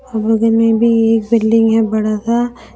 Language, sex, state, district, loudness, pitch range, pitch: Hindi, female, Jharkhand, Deoghar, -13 LUFS, 225-230 Hz, 225 Hz